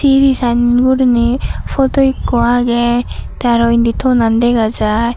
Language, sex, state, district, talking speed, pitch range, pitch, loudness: Chakma, female, Tripura, Dhalai, 140 wpm, 235-255 Hz, 240 Hz, -13 LUFS